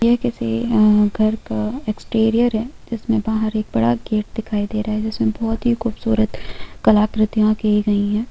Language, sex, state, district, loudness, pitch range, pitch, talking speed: Hindi, female, Bihar, East Champaran, -19 LUFS, 210-225 Hz, 215 Hz, 165 wpm